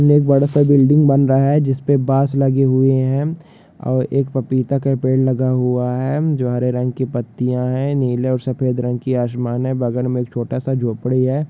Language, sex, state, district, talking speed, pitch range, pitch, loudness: Hindi, male, Jharkhand, Sahebganj, 220 wpm, 125-140 Hz, 130 Hz, -17 LUFS